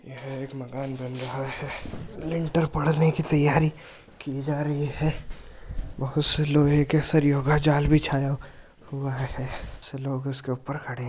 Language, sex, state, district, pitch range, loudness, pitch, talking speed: Hindi, male, Uttar Pradesh, Jyotiba Phule Nagar, 135-150 Hz, -24 LUFS, 140 Hz, 155 wpm